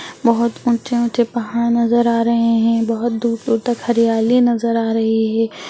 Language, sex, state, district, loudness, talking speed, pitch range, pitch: Hindi, female, Bihar, Lakhisarai, -17 LUFS, 170 wpm, 230-235 Hz, 235 Hz